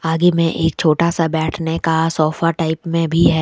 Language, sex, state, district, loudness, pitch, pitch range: Hindi, female, Jharkhand, Deoghar, -17 LUFS, 165 Hz, 160-165 Hz